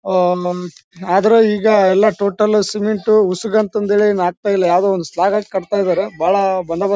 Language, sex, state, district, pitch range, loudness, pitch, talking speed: Kannada, male, Karnataka, Bellary, 180-210 Hz, -15 LUFS, 200 Hz, 175 wpm